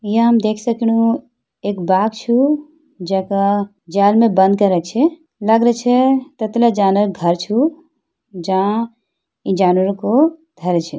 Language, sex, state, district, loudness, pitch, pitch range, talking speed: Hindi, female, Uttarakhand, Uttarkashi, -16 LUFS, 220 Hz, 195-245 Hz, 130 wpm